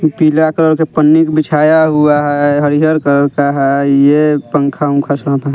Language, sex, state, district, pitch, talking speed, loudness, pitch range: Hindi, male, Bihar, West Champaran, 150 Hz, 185 wpm, -11 LUFS, 140-155 Hz